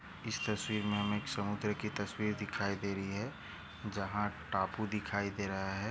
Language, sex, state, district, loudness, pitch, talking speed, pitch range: Hindi, male, Maharashtra, Sindhudurg, -37 LUFS, 100 Hz, 185 wpm, 100-105 Hz